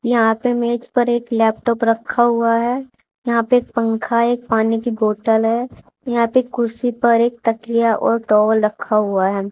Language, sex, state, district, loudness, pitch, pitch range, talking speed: Hindi, female, Haryana, Charkhi Dadri, -17 LUFS, 235 Hz, 225-240 Hz, 185 wpm